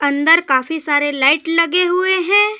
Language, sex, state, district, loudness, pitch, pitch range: Hindi, female, Jharkhand, Deoghar, -14 LUFS, 325 Hz, 290-360 Hz